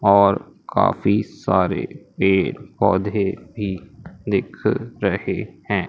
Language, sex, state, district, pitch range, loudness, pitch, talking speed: Hindi, male, Madhya Pradesh, Umaria, 95-100 Hz, -21 LUFS, 100 Hz, 90 wpm